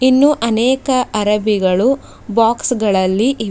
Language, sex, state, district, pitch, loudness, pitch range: Kannada, female, Karnataka, Bidar, 230 Hz, -15 LUFS, 210-260 Hz